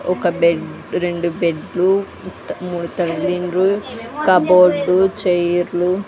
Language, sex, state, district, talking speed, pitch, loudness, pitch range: Telugu, female, Andhra Pradesh, Sri Satya Sai, 100 wpm, 180 Hz, -17 LUFS, 175-190 Hz